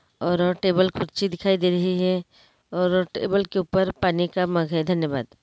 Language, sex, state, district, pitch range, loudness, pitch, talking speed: Hindi, female, Uttarakhand, Uttarkashi, 175-185 Hz, -23 LUFS, 180 Hz, 190 wpm